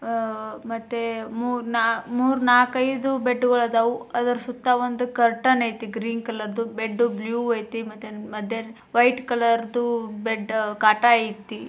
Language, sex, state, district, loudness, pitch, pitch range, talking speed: Kannada, female, Karnataka, Bijapur, -23 LUFS, 230 Hz, 225-245 Hz, 135 wpm